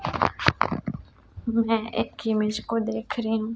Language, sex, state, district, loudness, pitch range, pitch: Hindi, male, Chhattisgarh, Raipur, -26 LUFS, 220-230 Hz, 225 Hz